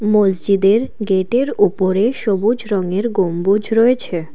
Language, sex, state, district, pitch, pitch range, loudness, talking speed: Bengali, female, Assam, Kamrup Metropolitan, 200 Hz, 190-225 Hz, -16 LUFS, 95 wpm